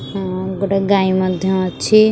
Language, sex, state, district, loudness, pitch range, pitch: Odia, female, Odisha, Khordha, -17 LUFS, 185-195 Hz, 190 Hz